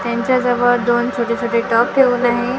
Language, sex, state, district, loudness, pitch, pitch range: Marathi, female, Maharashtra, Gondia, -16 LUFS, 240 Hz, 235-245 Hz